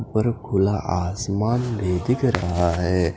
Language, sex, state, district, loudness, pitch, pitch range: Hindi, male, Punjab, Fazilka, -22 LUFS, 100 Hz, 90-115 Hz